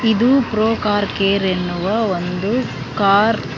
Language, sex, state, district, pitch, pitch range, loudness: Kannada, female, Karnataka, Bangalore, 205 Hz, 195-225 Hz, -17 LUFS